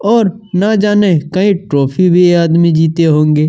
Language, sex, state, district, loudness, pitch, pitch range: Hindi, male, Chhattisgarh, Kabirdham, -11 LUFS, 175 Hz, 160-200 Hz